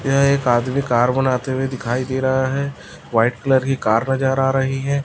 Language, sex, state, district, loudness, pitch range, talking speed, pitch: Hindi, male, Chhattisgarh, Raipur, -19 LUFS, 125-135 Hz, 215 wpm, 130 Hz